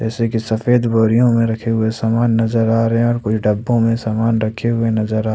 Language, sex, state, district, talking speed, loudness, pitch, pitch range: Hindi, male, Jharkhand, Ranchi, 235 wpm, -16 LUFS, 115 Hz, 110-115 Hz